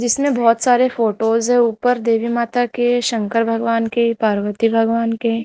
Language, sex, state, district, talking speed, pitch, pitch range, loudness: Hindi, female, Maharashtra, Mumbai Suburban, 165 wpm, 230 Hz, 225-240 Hz, -17 LUFS